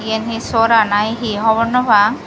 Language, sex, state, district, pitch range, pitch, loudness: Chakma, female, Tripura, Dhalai, 215-230 Hz, 225 Hz, -15 LUFS